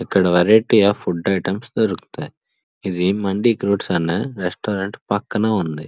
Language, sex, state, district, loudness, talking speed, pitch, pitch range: Telugu, male, Andhra Pradesh, Srikakulam, -19 LUFS, 120 wpm, 100 Hz, 95-105 Hz